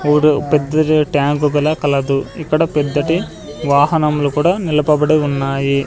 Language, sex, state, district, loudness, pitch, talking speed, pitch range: Telugu, male, Andhra Pradesh, Sri Satya Sai, -15 LUFS, 150 Hz, 110 wpm, 145-155 Hz